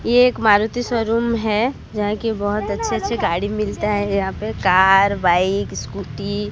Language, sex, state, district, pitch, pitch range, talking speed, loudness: Hindi, female, Odisha, Sambalpur, 205 Hz, 200-225 Hz, 175 wpm, -19 LUFS